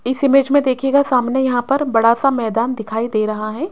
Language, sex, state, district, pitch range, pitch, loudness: Hindi, female, Rajasthan, Jaipur, 230-275 Hz, 250 Hz, -16 LUFS